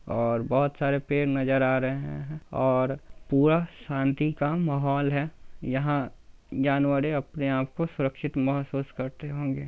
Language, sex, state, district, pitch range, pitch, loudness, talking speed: Hindi, male, Bihar, Saran, 135-145 Hz, 140 Hz, -27 LUFS, 135 wpm